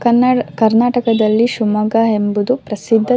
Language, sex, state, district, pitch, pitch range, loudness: Kannada, female, Karnataka, Shimoga, 225 Hz, 215-245 Hz, -14 LUFS